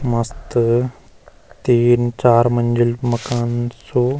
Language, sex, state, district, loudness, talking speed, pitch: Garhwali, male, Uttarakhand, Uttarkashi, -18 LUFS, 85 wpm, 120 Hz